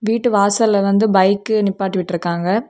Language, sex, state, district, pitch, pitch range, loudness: Tamil, female, Tamil Nadu, Kanyakumari, 200 Hz, 190-220 Hz, -16 LUFS